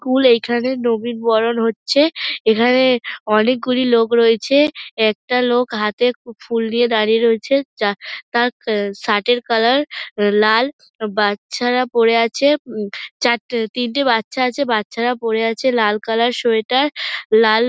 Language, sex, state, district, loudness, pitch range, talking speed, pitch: Bengali, female, West Bengal, Dakshin Dinajpur, -17 LUFS, 220-250 Hz, 130 wpm, 235 Hz